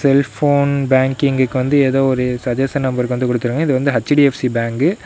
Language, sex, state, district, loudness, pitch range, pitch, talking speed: Tamil, male, Tamil Nadu, Namakkal, -16 LUFS, 125-140 Hz, 130 Hz, 180 wpm